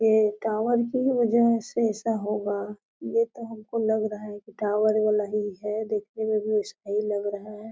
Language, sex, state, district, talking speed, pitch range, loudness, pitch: Hindi, female, Jharkhand, Sahebganj, 200 wpm, 210-225 Hz, -26 LUFS, 215 Hz